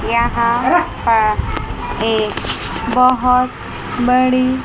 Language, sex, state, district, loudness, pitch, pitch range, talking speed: Hindi, female, Chandigarh, Chandigarh, -16 LUFS, 240 Hz, 220-255 Hz, 65 wpm